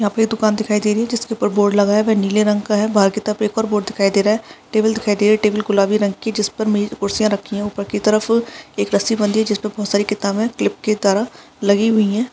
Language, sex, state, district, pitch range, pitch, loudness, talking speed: Hindi, female, Bihar, Saharsa, 205-220 Hz, 210 Hz, -17 LUFS, 275 wpm